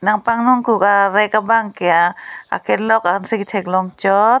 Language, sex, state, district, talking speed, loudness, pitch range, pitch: Karbi, female, Assam, Karbi Anglong, 135 wpm, -16 LUFS, 195-225 Hz, 210 Hz